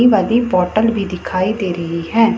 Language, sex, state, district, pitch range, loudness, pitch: Hindi, female, Punjab, Pathankot, 180-225 Hz, -17 LUFS, 200 Hz